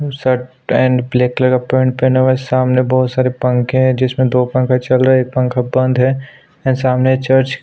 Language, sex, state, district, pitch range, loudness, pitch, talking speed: Hindi, male, Maharashtra, Aurangabad, 125-130 Hz, -14 LUFS, 130 Hz, 220 wpm